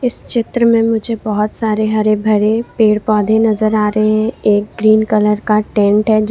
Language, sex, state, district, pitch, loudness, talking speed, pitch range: Hindi, female, Jharkhand, Ranchi, 215 Hz, -14 LUFS, 200 wpm, 210-220 Hz